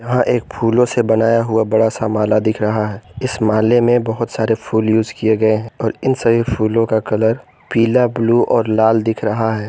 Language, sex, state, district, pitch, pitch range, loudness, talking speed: Hindi, male, Jharkhand, Garhwa, 110 Hz, 110-115 Hz, -16 LUFS, 215 wpm